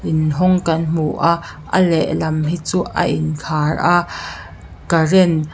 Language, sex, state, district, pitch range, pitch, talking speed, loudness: Mizo, female, Mizoram, Aizawl, 150-175 Hz, 160 Hz, 160 wpm, -17 LUFS